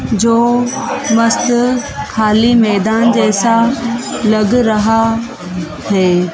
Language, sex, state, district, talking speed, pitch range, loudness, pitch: Hindi, female, Madhya Pradesh, Dhar, 75 wpm, 215-240 Hz, -13 LUFS, 225 Hz